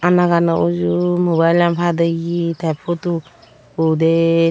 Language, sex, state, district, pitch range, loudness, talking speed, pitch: Chakma, female, Tripura, Dhalai, 165-175 Hz, -17 LUFS, 120 wpm, 170 Hz